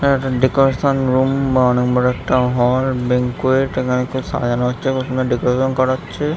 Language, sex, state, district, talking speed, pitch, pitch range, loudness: Bengali, male, West Bengal, Jhargram, 170 wpm, 130 Hz, 125-135 Hz, -17 LUFS